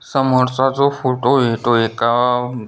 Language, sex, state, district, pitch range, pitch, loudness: Marathi, male, Maharashtra, Solapur, 120-135 Hz, 125 Hz, -16 LUFS